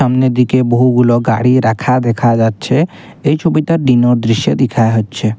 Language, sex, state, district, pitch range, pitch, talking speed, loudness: Bengali, male, Assam, Kamrup Metropolitan, 115-130 Hz, 125 Hz, 145 wpm, -12 LUFS